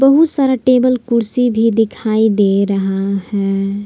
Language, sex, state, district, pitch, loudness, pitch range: Hindi, female, Jharkhand, Palamu, 220 Hz, -14 LUFS, 200-250 Hz